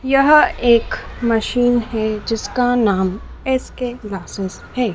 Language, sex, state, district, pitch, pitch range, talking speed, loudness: Hindi, female, Madhya Pradesh, Dhar, 235 Hz, 210-245 Hz, 110 wpm, -18 LUFS